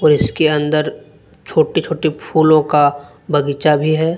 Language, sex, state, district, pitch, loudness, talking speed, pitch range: Hindi, male, Jharkhand, Deoghar, 150 Hz, -15 LUFS, 130 wpm, 145-155 Hz